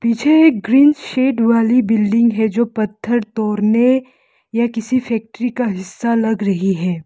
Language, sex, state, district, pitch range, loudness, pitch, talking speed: Hindi, female, Arunachal Pradesh, Lower Dibang Valley, 215-245 Hz, -16 LUFS, 230 Hz, 155 wpm